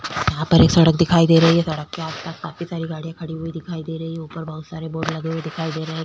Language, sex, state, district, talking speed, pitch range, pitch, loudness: Hindi, female, Uttarakhand, Tehri Garhwal, 295 wpm, 160-165 Hz, 160 Hz, -20 LUFS